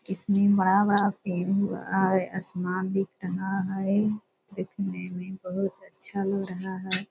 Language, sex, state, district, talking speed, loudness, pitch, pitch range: Hindi, female, Bihar, Purnia, 150 wpm, -24 LUFS, 190 Hz, 185-195 Hz